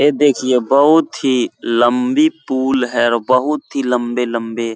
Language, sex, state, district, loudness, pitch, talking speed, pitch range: Hindi, male, Uttar Pradesh, Etah, -15 LUFS, 130 Hz, 150 wpm, 120-145 Hz